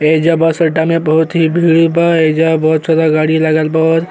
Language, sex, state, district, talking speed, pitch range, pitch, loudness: Bhojpuri, male, Uttar Pradesh, Gorakhpur, 190 wpm, 160-165 Hz, 160 Hz, -12 LUFS